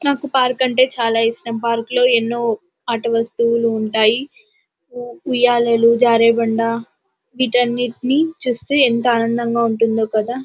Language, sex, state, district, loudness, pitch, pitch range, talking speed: Telugu, female, Andhra Pradesh, Anantapur, -17 LUFS, 235 Hz, 230-250 Hz, 105 wpm